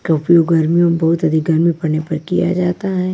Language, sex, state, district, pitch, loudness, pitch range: Hindi, female, Bihar, Kaimur, 170 Hz, -15 LUFS, 160-175 Hz